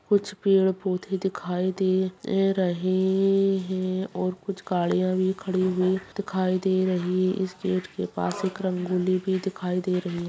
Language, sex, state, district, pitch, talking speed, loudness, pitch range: Hindi, female, Bihar, Bhagalpur, 185 Hz, 130 wpm, -25 LUFS, 185-190 Hz